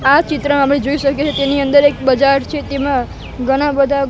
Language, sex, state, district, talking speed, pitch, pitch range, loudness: Gujarati, male, Gujarat, Gandhinagar, 205 wpm, 280 Hz, 275-285 Hz, -14 LUFS